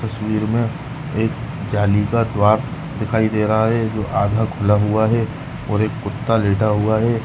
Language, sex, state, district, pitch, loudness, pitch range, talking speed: Hindi, male, West Bengal, Kolkata, 110 Hz, -19 LUFS, 105-115 Hz, 175 wpm